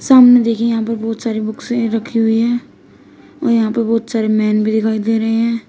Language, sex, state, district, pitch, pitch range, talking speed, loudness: Hindi, female, Uttar Pradesh, Shamli, 225 Hz, 220-230 Hz, 220 wpm, -15 LUFS